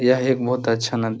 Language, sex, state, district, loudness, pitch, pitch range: Hindi, male, Bihar, Jahanabad, -21 LUFS, 120 Hz, 115-125 Hz